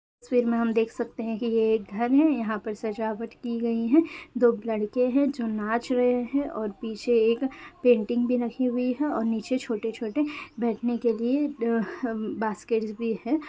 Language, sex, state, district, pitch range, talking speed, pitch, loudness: Hindi, female, Uttar Pradesh, Gorakhpur, 225-250 Hz, 185 wpm, 235 Hz, -26 LUFS